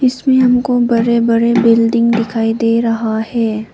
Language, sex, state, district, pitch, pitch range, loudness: Hindi, female, Arunachal Pradesh, Papum Pare, 230 Hz, 230-240 Hz, -13 LUFS